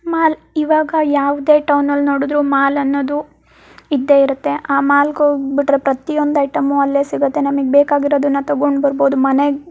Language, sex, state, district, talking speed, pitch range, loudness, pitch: Kannada, female, Karnataka, Mysore, 140 wpm, 280-295 Hz, -15 LUFS, 285 Hz